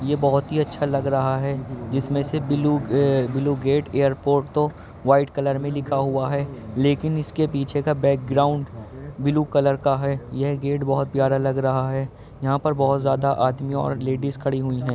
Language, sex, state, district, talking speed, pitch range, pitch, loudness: Hindi, male, Uttar Pradesh, Jyotiba Phule Nagar, 185 wpm, 135-145 Hz, 140 Hz, -22 LUFS